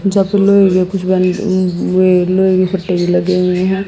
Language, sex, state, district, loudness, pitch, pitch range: Hindi, female, Haryana, Jhajjar, -13 LUFS, 185 Hz, 180-195 Hz